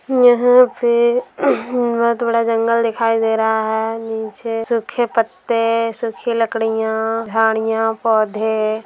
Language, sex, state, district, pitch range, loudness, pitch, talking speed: Bhojpuri, female, Bihar, Saran, 220-235 Hz, -17 LUFS, 230 Hz, 115 wpm